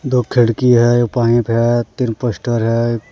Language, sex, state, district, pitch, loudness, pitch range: Hindi, male, Jharkhand, Deoghar, 120 Hz, -15 LUFS, 115-120 Hz